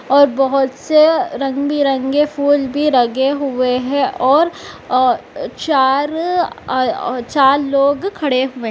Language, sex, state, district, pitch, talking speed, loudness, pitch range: Hindi, female, Uttar Pradesh, Etah, 275 Hz, 140 wpm, -15 LUFS, 260-290 Hz